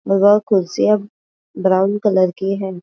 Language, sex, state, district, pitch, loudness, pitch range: Hindi, female, Maharashtra, Aurangabad, 195 Hz, -16 LUFS, 190-205 Hz